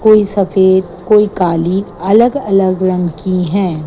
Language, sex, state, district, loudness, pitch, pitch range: Hindi, female, Gujarat, Gandhinagar, -12 LUFS, 190 Hz, 180-205 Hz